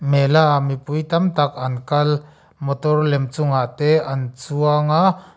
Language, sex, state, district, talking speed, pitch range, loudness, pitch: Mizo, male, Mizoram, Aizawl, 155 wpm, 140-155 Hz, -19 LUFS, 145 Hz